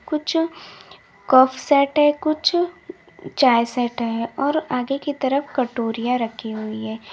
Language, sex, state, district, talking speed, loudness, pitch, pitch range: Hindi, female, Uttar Pradesh, Lalitpur, 135 wpm, -20 LUFS, 265 Hz, 235-300 Hz